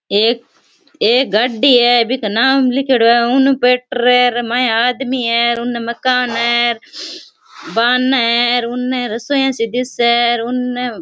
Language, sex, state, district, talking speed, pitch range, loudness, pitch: Rajasthani, female, Rajasthan, Churu, 150 wpm, 235-255 Hz, -14 LUFS, 245 Hz